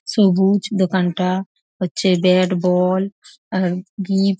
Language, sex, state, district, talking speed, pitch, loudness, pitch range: Bengali, female, West Bengal, North 24 Parganas, 95 wpm, 185 Hz, -18 LUFS, 185-195 Hz